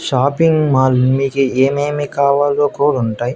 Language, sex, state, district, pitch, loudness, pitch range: Telugu, male, Andhra Pradesh, Annamaya, 140 Hz, -14 LUFS, 130-145 Hz